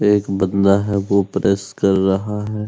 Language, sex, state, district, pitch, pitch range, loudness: Hindi, male, Uttar Pradesh, Muzaffarnagar, 100 Hz, 100-105 Hz, -17 LUFS